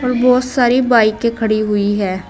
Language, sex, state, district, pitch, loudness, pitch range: Hindi, female, Uttar Pradesh, Saharanpur, 230 Hz, -14 LUFS, 210-250 Hz